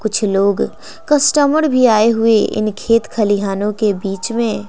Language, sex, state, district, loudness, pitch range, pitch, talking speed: Hindi, female, Bihar, West Champaran, -15 LUFS, 205-235 Hz, 215 Hz, 155 wpm